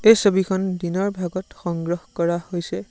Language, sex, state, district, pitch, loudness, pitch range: Assamese, male, Assam, Sonitpur, 180 Hz, -23 LUFS, 175-190 Hz